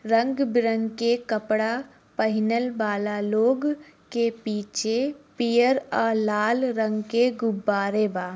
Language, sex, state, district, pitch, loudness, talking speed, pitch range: Bhojpuri, female, Bihar, Gopalganj, 225 Hz, -24 LUFS, 115 wpm, 215-245 Hz